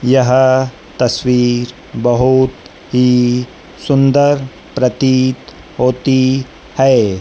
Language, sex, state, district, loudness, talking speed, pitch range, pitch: Hindi, male, Madhya Pradesh, Dhar, -13 LUFS, 65 wpm, 125-130 Hz, 130 Hz